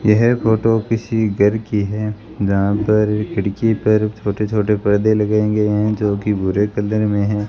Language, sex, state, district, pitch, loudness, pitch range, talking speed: Hindi, female, Rajasthan, Bikaner, 105 Hz, -17 LUFS, 105-110 Hz, 175 wpm